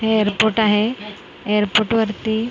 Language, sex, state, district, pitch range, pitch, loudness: Marathi, female, Maharashtra, Mumbai Suburban, 210-220 Hz, 220 Hz, -18 LUFS